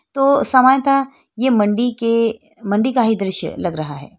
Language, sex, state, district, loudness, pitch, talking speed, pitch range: Hindi, female, Uttar Pradesh, Etah, -17 LUFS, 230 Hz, 170 wpm, 205-265 Hz